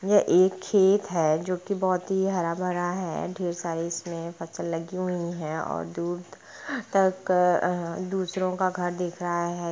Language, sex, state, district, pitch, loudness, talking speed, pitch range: Hindi, female, Bihar, Gopalganj, 180 Hz, -27 LUFS, 165 wpm, 170-185 Hz